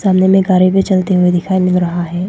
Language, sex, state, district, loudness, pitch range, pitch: Hindi, female, Arunachal Pradesh, Papum Pare, -12 LUFS, 180-190 Hz, 185 Hz